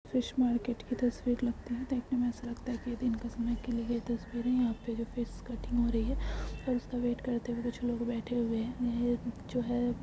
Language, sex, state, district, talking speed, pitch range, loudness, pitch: Hindi, female, Bihar, Bhagalpur, 245 wpm, 235-245 Hz, -34 LUFS, 240 Hz